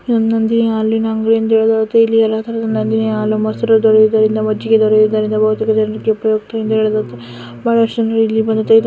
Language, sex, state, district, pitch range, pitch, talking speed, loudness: Kannada, female, Karnataka, Shimoga, 215-225 Hz, 220 Hz, 150 wpm, -14 LUFS